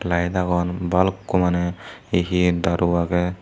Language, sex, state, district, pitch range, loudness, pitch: Chakma, male, Tripura, Dhalai, 85-90 Hz, -21 LUFS, 90 Hz